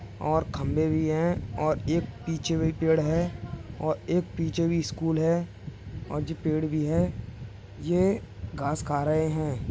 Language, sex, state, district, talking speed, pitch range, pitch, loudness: Hindi, male, Uttar Pradesh, Hamirpur, 175 wpm, 125-165 Hz, 155 Hz, -28 LUFS